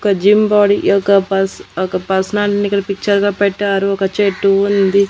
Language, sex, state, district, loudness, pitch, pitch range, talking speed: Telugu, female, Andhra Pradesh, Annamaya, -14 LUFS, 200 Hz, 195-205 Hz, 155 wpm